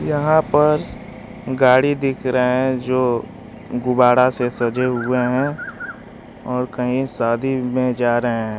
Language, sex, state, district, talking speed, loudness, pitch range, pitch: Hindi, male, Bihar, Kaimur, 135 wpm, -18 LUFS, 125-130 Hz, 125 Hz